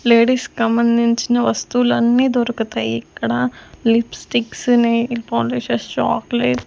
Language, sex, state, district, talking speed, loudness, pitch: Telugu, female, Andhra Pradesh, Sri Satya Sai, 90 wpm, -18 LUFS, 235 Hz